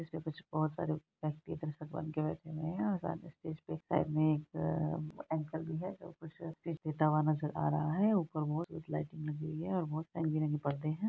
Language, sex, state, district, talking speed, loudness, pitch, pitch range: Hindi, female, Bihar, Araria, 180 wpm, -37 LUFS, 155 Hz, 155-165 Hz